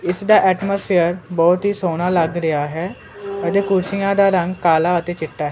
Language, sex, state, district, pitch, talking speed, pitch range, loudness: Punjabi, male, Punjab, Kapurthala, 180 Hz, 185 wpm, 170-195 Hz, -18 LUFS